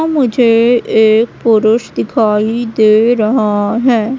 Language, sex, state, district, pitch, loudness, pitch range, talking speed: Hindi, female, Madhya Pradesh, Katni, 225 Hz, -11 LUFS, 215-240 Hz, 100 wpm